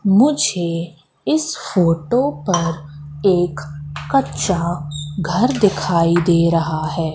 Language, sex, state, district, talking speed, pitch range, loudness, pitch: Hindi, female, Madhya Pradesh, Katni, 90 wpm, 150-185 Hz, -18 LUFS, 170 Hz